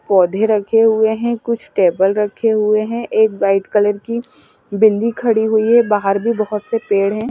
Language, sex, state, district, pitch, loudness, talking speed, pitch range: Hindi, female, Maharashtra, Mumbai Suburban, 220 Hz, -15 LUFS, 190 wpm, 205-230 Hz